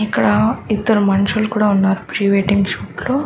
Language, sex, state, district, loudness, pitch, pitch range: Telugu, female, Andhra Pradesh, Chittoor, -16 LUFS, 210 Hz, 200-215 Hz